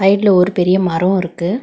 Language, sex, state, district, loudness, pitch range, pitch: Tamil, female, Tamil Nadu, Chennai, -14 LUFS, 180-195 Hz, 185 Hz